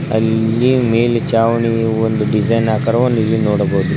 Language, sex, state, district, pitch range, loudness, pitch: Kannada, male, Karnataka, Koppal, 110-115 Hz, -15 LUFS, 115 Hz